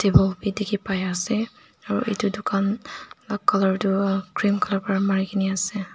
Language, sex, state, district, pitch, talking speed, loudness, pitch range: Nagamese, female, Nagaland, Dimapur, 195 Hz, 170 wpm, -24 LUFS, 190-205 Hz